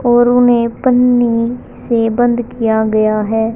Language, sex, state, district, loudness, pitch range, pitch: Hindi, male, Haryana, Charkhi Dadri, -13 LUFS, 225-245 Hz, 235 Hz